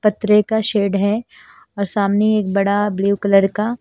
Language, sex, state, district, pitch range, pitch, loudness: Hindi, female, Himachal Pradesh, Shimla, 200-215 Hz, 205 Hz, -17 LUFS